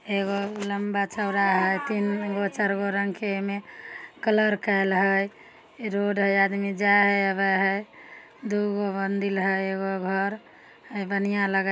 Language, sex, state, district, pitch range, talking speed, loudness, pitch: Maithili, female, Bihar, Samastipur, 195-205 Hz, 155 wpm, -25 LUFS, 200 Hz